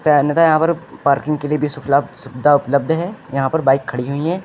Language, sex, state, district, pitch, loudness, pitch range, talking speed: Hindi, male, Uttar Pradesh, Lucknow, 145 Hz, -17 LUFS, 140-160 Hz, 245 wpm